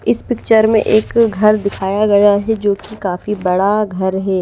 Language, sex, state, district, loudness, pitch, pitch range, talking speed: Hindi, female, Bihar, Patna, -14 LUFS, 205 Hz, 195-215 Hz, 190 wpm